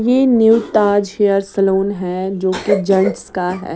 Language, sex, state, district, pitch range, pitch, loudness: Hindi, female, Bihar, West Champaran, 190-210 Hz, 195 Hz, -15 LUFS